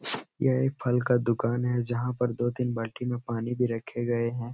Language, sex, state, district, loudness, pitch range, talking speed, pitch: Hindi, male, Uttar Pradesh, Etah, -28 LUFS, 120-125 Hz, 225 wpm, 120 Hz